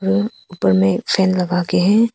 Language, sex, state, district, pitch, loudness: Hindi, female, Arunachal Pradesh, Papum Pare, 180 Hz, -17 LUFS